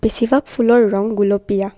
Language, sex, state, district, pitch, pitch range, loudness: Assamese, female, Assam, Kamrup Metropolitan, 220 Hz, 200-235 Hz, -15 LUFS